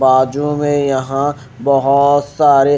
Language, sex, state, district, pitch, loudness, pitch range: Hindi, male, Himachal Pradesh, Shimla, 140 Hz, -14 LUFS, 135-145 Hz